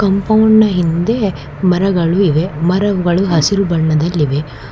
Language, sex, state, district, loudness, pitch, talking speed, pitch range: Kannada, female, Karnataka, Bangalore, -14 LUFS, 180 Hz, 75 wpm, 160-195 Hz